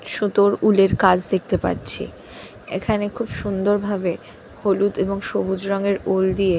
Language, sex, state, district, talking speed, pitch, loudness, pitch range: Bengali, female, West Bengal, Dakshin Dinajpur, 135 wpm, 195 Hz, -20 LUFS, 190-205 Hz